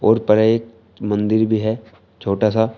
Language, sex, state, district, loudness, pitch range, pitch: Hindi, male, Uttar Pradesh, Shamli, -18 LUFS, 105-110 Hz, 110 Hz